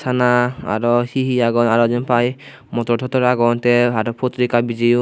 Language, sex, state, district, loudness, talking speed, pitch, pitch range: Chakma, male, Tripura, Unakoti, -17 LUFS, 165 wpm, 120 Hz, 120-125 Hz